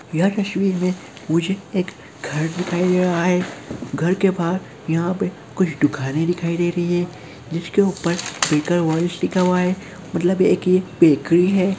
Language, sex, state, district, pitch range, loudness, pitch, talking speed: Hindi, male, Chhattisgarh, Kabirdham, 165-185 Hz, -20 LUFS, 175 Hz, 170 wpm